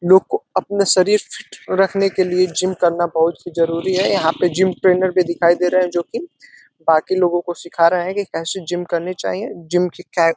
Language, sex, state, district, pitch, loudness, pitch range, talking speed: Hindi, male, Uttar Pradesh, Deoria, 180 Hz, -18 LUFS, 170-185 Hz, 220 wpm